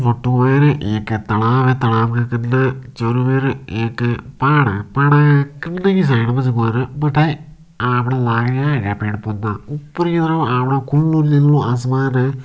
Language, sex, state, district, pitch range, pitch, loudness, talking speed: Marwari, male, Rajasthan, Nagaur, 120-145 Hz, 130 Hz, -16 LUFS, 150 wpm